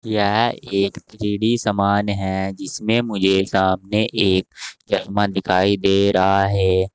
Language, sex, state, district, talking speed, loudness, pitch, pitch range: Hindi, male, Uttar Pradesh, Saharanpur, 120 wpm, -19 LUFS, 100 Hz, 95-105 Hz